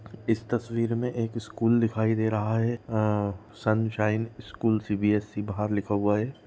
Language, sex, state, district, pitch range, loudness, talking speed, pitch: Hindi, male, Goa, North and South Goa, 105-115 Hz, -27 LUFS, 160 wpm, 110 Hz